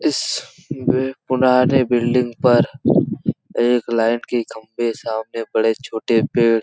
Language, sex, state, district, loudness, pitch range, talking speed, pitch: Hindi, male, Chhattisgarh, Raigarh, -19 LUFS, 115-125 Hz, 100 wpm, 120 Hz